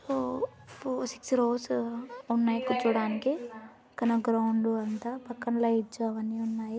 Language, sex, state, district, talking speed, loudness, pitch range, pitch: Telugu, female, Andhra Pradesh, Anantapur, 105 wpm, -30 LUFS, 225-250 Hz, 235 Hz